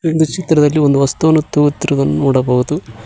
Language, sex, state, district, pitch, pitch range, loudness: Kannada, male, Karnataka, Koppal, 145 Hz, 140-160 Hz, -14 LUFS